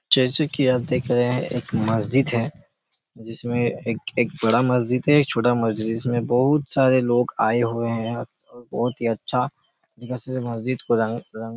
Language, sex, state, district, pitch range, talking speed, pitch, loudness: Hindi, male, Chhattisgarh, Raigarh, 115-130 Hz, 165 wpm, 120 Hz, -22 LUFS